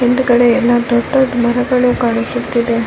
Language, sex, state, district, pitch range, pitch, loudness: Kannada, female, Karnataka, Bellary, 235-250 Hz, 245 Hz, -13 LUFS